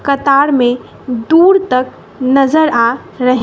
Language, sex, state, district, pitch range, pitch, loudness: Hindi, female, Bihar, West Champaran, 250-290 Hz, 265 Hz, -12 LUFS